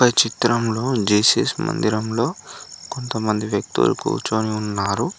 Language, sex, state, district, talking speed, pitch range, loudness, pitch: Telugu, male, Telangana, Komaram Bheem, 80 wpm, 105-120 Hz, -20 LUFS, 110 Hz